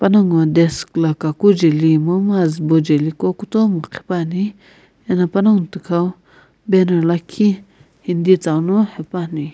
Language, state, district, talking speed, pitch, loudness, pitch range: Sumi, Nagaland, Kohima, 130 wpm, 175 Hz, -16 LUFS, 160-195 Hz